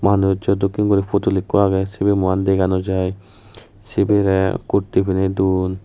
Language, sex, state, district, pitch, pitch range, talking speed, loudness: Chakma, male, Tripura, West Tripura, 95 Hz, 95-100 Hz, 155 wpm, -18 LUFS